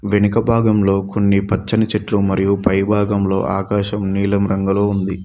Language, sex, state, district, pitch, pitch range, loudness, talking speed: Telugu, male, Telangana, Mahabubabad, 100 Hz, 95-105 Hz, -17 LUFS, 135 wpm